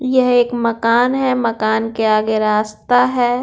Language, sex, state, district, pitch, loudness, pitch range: Hindi, female, Bihar, Patna, 235 Hz, -16 LUFS, 220-250 Hz